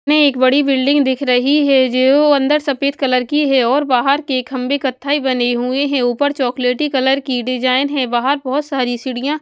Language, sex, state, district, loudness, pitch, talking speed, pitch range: Hindi, female, Punjab, Kapurthala, -15 LUFS, 270 Hz, 205 wpm, 255-285 Hz